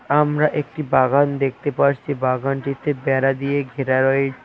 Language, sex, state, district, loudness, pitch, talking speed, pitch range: Bengali, male, West Bengal, Cooch Behar, -20 LUFS, 140 Hz, 135 wpm, 135-145 Hz